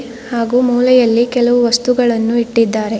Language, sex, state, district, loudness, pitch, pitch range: Kannada, female, Karnataka, Bidar, -13 LUFS, 240 Hz, 230-245 Hz